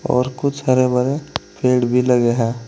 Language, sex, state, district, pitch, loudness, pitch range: Hindi, male, Uttar Pradesh, Saharanpur, 125 Hz, -18 LUFS, 125-135 Hz